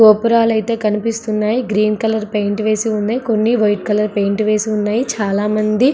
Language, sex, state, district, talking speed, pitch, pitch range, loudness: Telugu, female, Andhra Pradesh, Srikakulam, 150 wpm, 215 Hz, 210-225 Hz, -16 LUFS